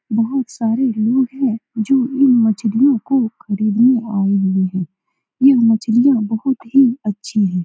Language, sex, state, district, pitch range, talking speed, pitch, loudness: Hindi, female, Bihar, Saran, 215-260 Hz, 150 wpm, 230 Hz, -16 LUFS